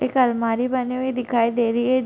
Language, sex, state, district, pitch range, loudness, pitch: Hindi, female, Bihar, Gopalganj, 235-255 Hz, -21 LUFS, 250 Hz